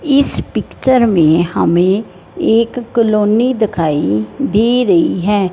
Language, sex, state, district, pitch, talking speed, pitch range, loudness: Hindi, male, Punjab, Fazilka, 215 Hz, 110 wpm, 180-245 Hz, -13 LUFS